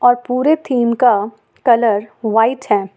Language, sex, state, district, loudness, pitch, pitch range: Hindi, female, Jharkhand, Ranchi, -15 LUFS, 235 Hz, 215-250 Hz